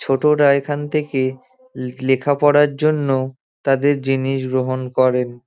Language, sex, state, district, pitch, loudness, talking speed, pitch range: Bengali, male, West Bengal, Dakshin Dinajpur, 135 Hz, -18 LUFS, 110 wpm, 130-145 Hz